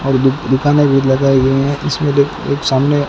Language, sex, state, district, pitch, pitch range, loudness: Hindi, male, Rajasthan, Bikaner, 140 Hz, 135-145 Hz, -14 LUFS